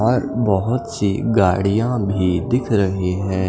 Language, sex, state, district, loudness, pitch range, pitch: Hindi, male, Punjab, Fazilka, -19 LUFS, 95-120 Hz, 100 Hz